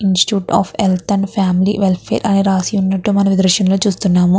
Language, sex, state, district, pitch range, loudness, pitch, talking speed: Telugu, female, Andhra Pradesh, Guntur, 185-200 Hz, -14 LUFS, 195 Hz, 190 wpm